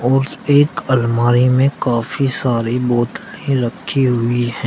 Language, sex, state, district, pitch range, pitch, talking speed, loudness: Hindi, male, Uttar Pradesh, Shamli, 120-135 Hz, 125 Hz, 130 wpm, -16 LUFS